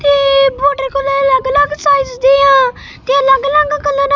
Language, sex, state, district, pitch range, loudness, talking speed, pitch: Punjabi, female, Punjab, Kapurthala, 270-285 Hz, -12 LUFS, 175 wpm, 275 Hz